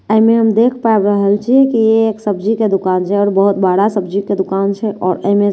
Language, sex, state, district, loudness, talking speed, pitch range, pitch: Maithili, female, Bihar, Katihar, -13 LUFS, 295 wpm, 195-220 Hz, 205 Hz